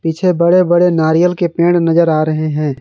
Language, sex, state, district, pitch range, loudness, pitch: Hindi, male, Jharkhand, Garhwa, 160-175 Hz, -12 LUFS, 170 Hz